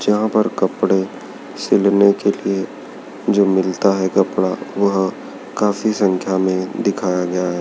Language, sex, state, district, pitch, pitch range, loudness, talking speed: Hindi, male, Madhya Pradesh, Dhar, 95 Hz, 95-100 Hz, -17 LUFS, 135 wpm